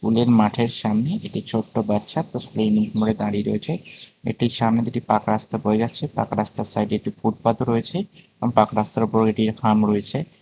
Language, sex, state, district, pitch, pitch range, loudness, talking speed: Bengali, male, Tripura, West Tripura, 110 Hz, 105-120 Hz, -22 LUFS, 195 wpm